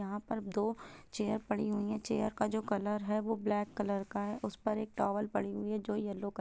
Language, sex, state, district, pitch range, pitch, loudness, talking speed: Hindi, female, Bihar, Gopalganj, 205-215 Hz, 210 Hz, -36 LUFS, 250 wpm